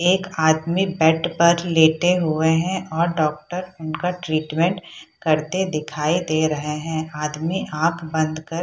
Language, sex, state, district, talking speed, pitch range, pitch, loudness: Hindi, female, Bihar, Purnia, 155 wpm, 155-175 Hz, 160 Hz, -21 LUFS